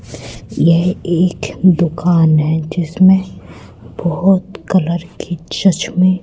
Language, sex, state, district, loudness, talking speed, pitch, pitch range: Hindi, female, Madhya Pradesh, Katni, -14 LUFS, 85 wpm, 170 Hz, 155-185 Hz